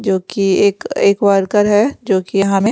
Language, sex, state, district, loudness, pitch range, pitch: Hindi, female, Himachal Pradesh, Shimla, -14 LUFS, 195-205 Hz, 200 Hz